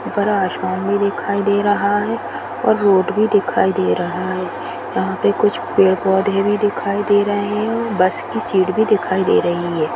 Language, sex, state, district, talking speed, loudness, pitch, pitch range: Hindi, female, Bihar, Jahanabad, 185 wpm, -17 LUFS, 200 Hz, 190-210 Hz